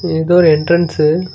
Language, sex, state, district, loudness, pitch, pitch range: Tamil, male, Karnataka, Bangalore, -12 LUFS, 170 Hz, 155-175 Hz